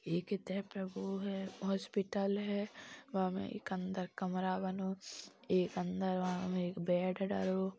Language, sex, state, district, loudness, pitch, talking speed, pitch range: Bundeli, female, Uttar Pradesh, Hamirpur, -38 LUFS, 190 Hz, 145 wpm, 185-200 Hz